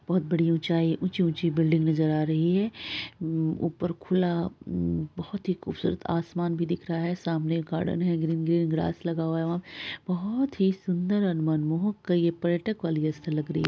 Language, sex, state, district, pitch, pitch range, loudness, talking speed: Hindi, female, Bihar, Araria, 170 Hz, 160-180 Hz, -27 LUFS, 185 wpm